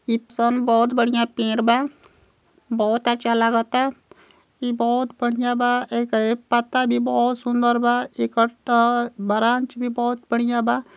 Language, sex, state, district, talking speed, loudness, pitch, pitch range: Bhojpuri, female, Uttar Pradesh, Gorakhpur, 125 wpm, -21 LUFS, 240 Hz, 235-245 Hz